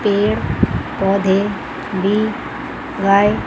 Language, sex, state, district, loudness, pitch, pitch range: Hindi, female, Chandigarh, Chandigarh, -18 LUFS, 200 Hz, 195-210 Hz